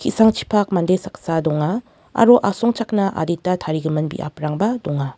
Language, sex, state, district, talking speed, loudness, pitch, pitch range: Garo, female, Meghalaya, West Garo Hills, 115 wpm, -19 LUFS, 180 Hz, 155-215 Hz